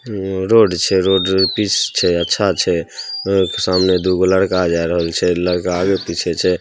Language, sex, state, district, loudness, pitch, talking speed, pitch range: Maithili, male, Bihar, Samastipur, -16 LUFS, 95 Hz, 170 wpm, 90-95 Hz